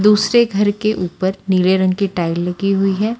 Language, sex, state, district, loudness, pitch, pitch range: Hindi, female, Haryana, Charkhi Dadri, -16 LUFS, 195 Hz, 185-210 Hz